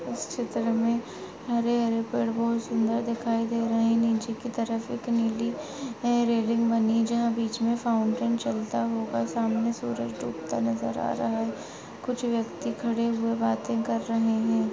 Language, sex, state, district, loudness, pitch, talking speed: Hindi, female, Chhattisgarh, Raigarh, -27 LUFS, 230 Hz, 170 wpm